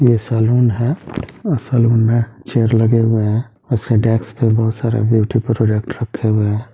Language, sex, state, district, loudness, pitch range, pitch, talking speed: Hindi, male, Bihar, Madhepura, -16 LUFS, 110-120 Hz, 115 Hz, 170 wpm